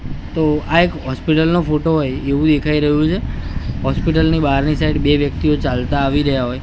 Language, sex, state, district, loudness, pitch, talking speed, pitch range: Gujarati, male, Gujarat, Gandhinagar, -17 LUFS, 150 Hz, 190 wpm, 140-155 Hz